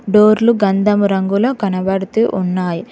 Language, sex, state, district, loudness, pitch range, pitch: Telugu, female, Telangana, Mahabubabad, -15 LUFS, 190-215 Hz, 200 Hz